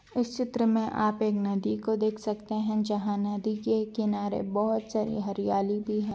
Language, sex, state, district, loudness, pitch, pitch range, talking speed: Hindi, female, Bihar, Purnia, -29 LUFS, 215 Hz, 205-220 Hz, 195 wpm